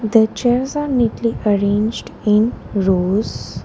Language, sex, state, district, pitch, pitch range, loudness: English, female, Gujarat, Valsad, 220 Hz, 205-240 Hz, -18 LUFS